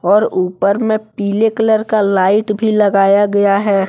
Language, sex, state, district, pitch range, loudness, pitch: Hindi, male, Jharkhand, Deoghar, 200-215 Hz, -14 LUFS, 205 Hz